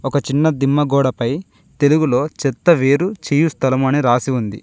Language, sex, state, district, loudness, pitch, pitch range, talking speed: Telugu, male, Telangana, Mahabubabad, -16 LUFS, 140 Hz, 130-155 Hz, 155 wpm